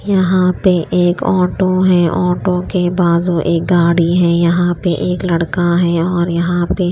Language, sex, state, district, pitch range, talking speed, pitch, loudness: Hindi, female, Chandigarh, Chandigarh, 170-180 Hz, 165 wpm, 175 Hz, -14 LUFS